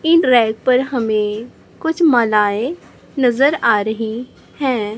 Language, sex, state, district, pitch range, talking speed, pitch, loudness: Hindi, female, Chhattisgarh, Raipur, 220-275 Hz, 120 wpm, 245 Hz, -16 LUFS